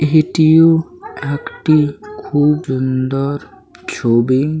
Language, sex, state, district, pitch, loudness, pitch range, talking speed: Bengali, male, West Bengal, Paschim Medinipur, 145 Hz, -15 LUFS, 130-155 Hz, 65 wpm